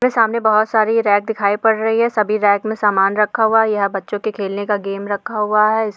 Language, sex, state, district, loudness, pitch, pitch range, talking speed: Hindi, female, Rajasthan, Churu, -16 LUFS, 215 Hz, 205-220 Hz, 250 wpm